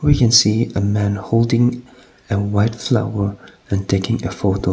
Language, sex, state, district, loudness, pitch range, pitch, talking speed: English, male, Nagaland, Kohima, -18 LUFS, 100-120 Hz, 105 Hz, 165 wpm